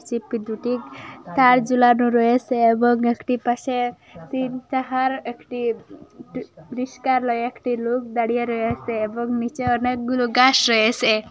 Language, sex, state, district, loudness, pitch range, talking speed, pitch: Bengali, female, Assam, Hailakandi, -21 LUFS, 235-250 Hz, 110 wpm, 240 Hz